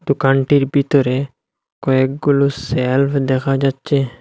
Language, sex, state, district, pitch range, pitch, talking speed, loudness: Bengali, male, Assam, Hailakandi, 130-140 Hz, 135 Hz, 85 wpm, -16 LUFS